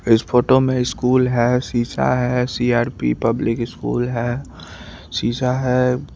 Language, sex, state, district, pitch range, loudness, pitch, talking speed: Hindi, male, Chandigarh, Chandigarh, 120-125 Hz, -19 LUFS, 125 Hz, 125 wpm